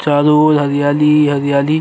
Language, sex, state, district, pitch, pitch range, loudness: Bhojpuri, male, Uttar Pradesh, Deoria, 145 Hz, 145-150 Hz, -12 LUFS